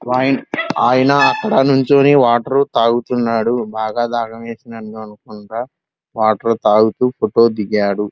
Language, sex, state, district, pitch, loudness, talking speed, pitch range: Telugu, male, Andhra Pradesh, Krishna, 115 Hz, -15 LUFS, 105 wpm, 110-130 Hz